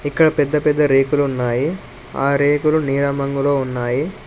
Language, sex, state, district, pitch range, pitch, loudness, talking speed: Telugu, male, Telangana, Hyderabad, 135-150 Hz, 140 Hz, -17 LUFS, 140 wpm